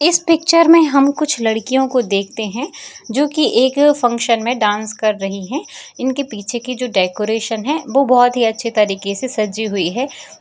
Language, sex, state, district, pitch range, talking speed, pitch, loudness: Hindi, female, Bihar, Jamui, 215-275 Hz, 190 wpm, 240 Hz, -16 LUFS